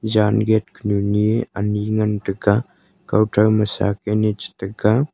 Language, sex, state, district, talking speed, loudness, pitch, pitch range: Wancho, male, Arunachal Pradesh, Longding, 150 wpm, -19 LUFS, 105 Hz, 105-110 Hz